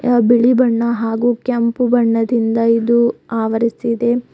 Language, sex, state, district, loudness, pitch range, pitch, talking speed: Kannada, female, Karnataka, Bidar, -15 LUFS, 230-240 Hz, 235 Hz, 95 wpm